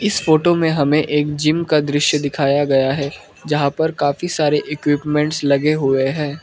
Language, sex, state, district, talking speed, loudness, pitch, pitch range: Hindi, male, Arunachal Pradesh, Lower Dibang Valley, 175 wpm, -17 LUFS, 150 Hz, 145-155 Hz